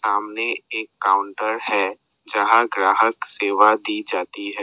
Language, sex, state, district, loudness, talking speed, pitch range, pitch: Hindi, male, Assam, Sonitpur, -20 LUFS, 130 wpm, 100-110 Hz, 105 Hz